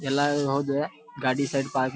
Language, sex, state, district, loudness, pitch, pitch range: Kannada, male, Karnataka, Dharwad, -26 LUFS, 140 Hz, 135-145 Hz